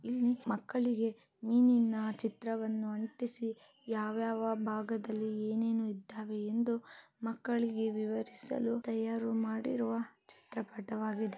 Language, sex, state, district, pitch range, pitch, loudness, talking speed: Kannada, female, Karnataka, Chamarajanagar, 220-235 Hz, 225 Hz, -35 LUFS, 90 wpm